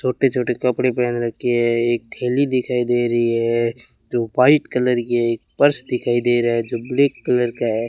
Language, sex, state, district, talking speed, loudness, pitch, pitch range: Hindi, male, Rajasthan, Bikaner, 205 wpm, -19 LUFS, 120 Hz, 120-125 Hz